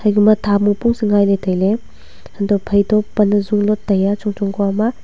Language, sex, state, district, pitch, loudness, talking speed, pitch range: Wancho, female, Arunachal Pradesh, Longding, 205 Hz, -16 LUFS, 260 wpm, 200-210 Hz